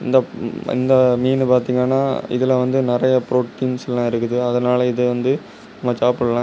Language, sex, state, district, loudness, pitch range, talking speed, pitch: Tamil, male, Tamil Nadu, Kanyakumari, -18 LUFS, 125-130 Hz, 140 wpm, 125 Hz